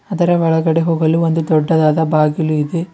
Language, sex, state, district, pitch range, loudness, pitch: Kannada, female, Karnataka, Bidar, 155-165 Hz, -15 LUFS, 160 Hz